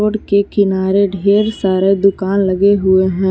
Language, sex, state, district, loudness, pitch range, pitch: Hindi, female, Jharkhand, Palamu, -14 LUFS, 190-200 Hz, 195 Hz